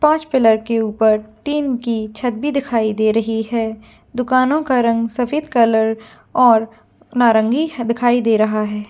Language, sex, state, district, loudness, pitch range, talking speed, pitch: Hindi, female, Jharkhand, Jamtara, -17 LUFS, 220-255 Hz, 155 wpm, 230 Hz